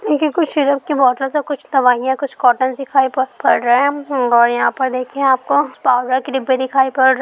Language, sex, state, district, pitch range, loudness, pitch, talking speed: Hindi, female, Andhra Pradesh, Guntur, 255-280 Hz, -16 LUFS, 265 Hz, 215 wpm